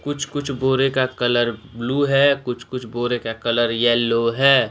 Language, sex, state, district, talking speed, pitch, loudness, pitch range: Hindi, male, Jharkhand, Deoghar, 180 wpm, 125 Hz, -20 LUFS, 120-135 Hz